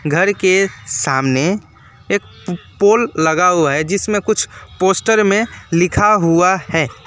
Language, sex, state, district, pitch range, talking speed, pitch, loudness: Hindi, male, West Bengal, Alipurduar, 160-200 Hz, 125 wpm, 185 Hz, -15 LUFS